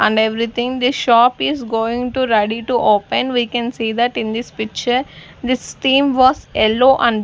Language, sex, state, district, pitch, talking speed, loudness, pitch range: English, female, Punjab, Fazilka, 240 Hz, 190 wpm, -16 LUFS, 225-255 Hz